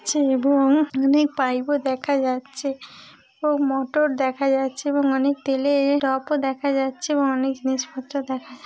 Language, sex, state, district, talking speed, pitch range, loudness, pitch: Bengali, female, West Bengal, Dakshin Dinajpur, 160 wpm, 265-285 Hz, -22 LUFS, 275 Hz